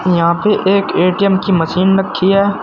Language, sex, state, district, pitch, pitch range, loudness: Hindi, male, Uttar Pradesh, Saharanpur, 190 Hz, 180-200 Hz, -13 LUFS